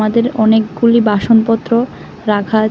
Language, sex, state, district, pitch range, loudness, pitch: Bengali, female, Tripura, West Tripura, 215-235 Hz, -13 LUFS, 225 Hz